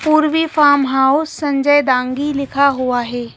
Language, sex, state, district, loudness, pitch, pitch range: Hindi, female, Madhya Pradesh, Bhopal, -15 LUFS, 280 Hz, 265-295 Hz